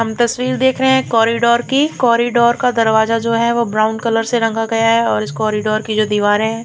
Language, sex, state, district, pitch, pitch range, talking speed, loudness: Hindi, female, Punjab, Fazilka, 230 Hz, 220-240 Hz, 245 wpm, -15 LUFS